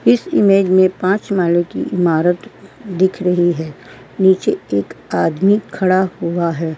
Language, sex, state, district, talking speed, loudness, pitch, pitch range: Hindi, female, Uttar Pradesh, Varanasi, 140 wpm, -16 LUFS, 180 Hz, 170-190 Hz